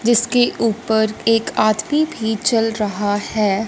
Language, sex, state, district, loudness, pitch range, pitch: Hindi, female, Punjab, Fazilka, -18 LUFS, 215-235 Hz, 220 Hz